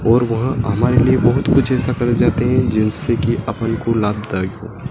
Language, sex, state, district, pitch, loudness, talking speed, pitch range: Hindi, male, Madhya Pradesh, Dhar, 120 Hz, -17 LUFS, 195 wpm, 110-125 Hz